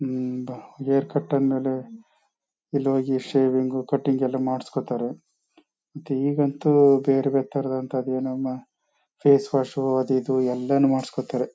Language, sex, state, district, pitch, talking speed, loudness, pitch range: Kannada, male, Karnataka, Chamarajanagar, 135 Hz, 120 wpm, -23 LUFS, 130-140 Hz